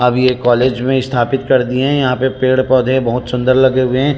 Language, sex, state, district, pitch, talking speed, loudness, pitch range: Chhattisgarhi, male, Chhattisgarh, Rajnandgaon, 130 Hz, 230 wpm, -14 LUFS, 125-130 Hz